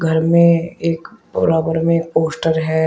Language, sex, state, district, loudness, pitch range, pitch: Hindi, male, Uttar Pradesh, Shamli, -16 LUFS, 160-165 Hz, 165 Hz